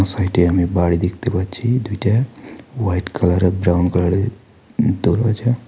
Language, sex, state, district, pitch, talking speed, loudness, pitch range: Bengali, male, West Bengal, Alipurduar, 95 Hz, 135 wpm, -18 LUFS, 90-115 Hz